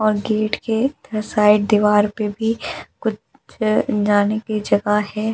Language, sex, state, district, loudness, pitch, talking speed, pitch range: Hindi, female, Delhi, New Delhi, -19 LUFS, 215 Hz, 145 wpm, 210-220 Hz